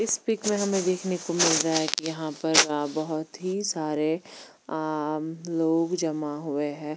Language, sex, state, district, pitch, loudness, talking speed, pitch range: Hindi, female, Chandigarh, Chandigarh, 160 Hz, -26 LUFS, 170 wpm, 155-180 Hz